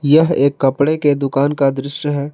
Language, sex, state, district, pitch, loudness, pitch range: Hindi, male, Jharkhand, Garhwa, 140 Hz, -16 LUFS, 140-150 Hz